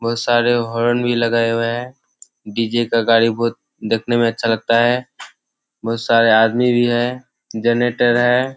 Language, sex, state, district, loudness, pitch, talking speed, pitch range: Hindi, male, Bihar, Kishanganj, -17 LUFS, 120 Hz, 160 wpm, 115-120 Hz